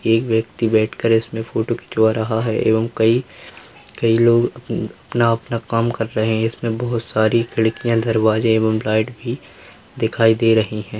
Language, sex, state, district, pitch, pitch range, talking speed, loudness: Hindi, male, Bihar, Purnia, 115 Hz, 110-115 Hz, 170 wpm, -18 LUFS